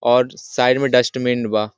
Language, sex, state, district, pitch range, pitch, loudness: Hindi, male, Jharkhand, Sahebganj, 120-125 Hz, 125 Hz, -18 LUFS